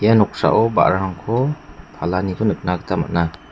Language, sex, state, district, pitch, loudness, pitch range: Garo, male, Meghalaya, West Garo Hills, 95 Hz, -19 LUFS, 85-110 Hz